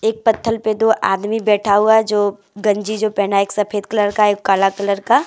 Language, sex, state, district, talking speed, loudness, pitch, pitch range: Hindi, female, Jharkhand, Deoghar, 240 wpm, -16 LUFS, 210 Hz, 200-220 Hz